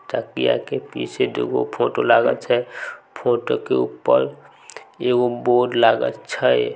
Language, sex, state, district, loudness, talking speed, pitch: Maithili, male, Bihar, Samastipur, -20 LUFS, 135 wpm, 110 Hz